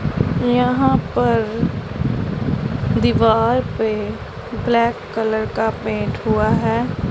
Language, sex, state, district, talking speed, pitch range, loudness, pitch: Hindi, female, Punjab, Pathankot, 85 wpm, 220-245 Hz, -19 LUFS, 235 Hz